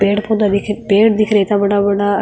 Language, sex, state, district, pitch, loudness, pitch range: Marwari, female, Rajasthan, Nagaur, 205 Hz, -14 LUFS, 200-210 Hz